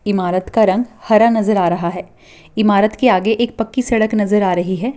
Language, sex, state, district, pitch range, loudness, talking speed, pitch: Hindi, female, Rajasthan, Churu, 185-225 Hz, -15 LUFS, 215 wpm, 215 Hz